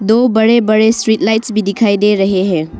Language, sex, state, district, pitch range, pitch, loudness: Hindi, female, Arunachal Pradesh, Longding, 200-225 Hz, 215 Hz, -12 LUFS